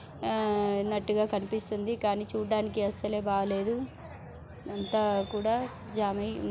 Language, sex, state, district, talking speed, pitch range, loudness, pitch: Telugu, female, Telangana, Nalgonda, 100 wpm, 200-215 Hz, -30 LUFS, 210 Hz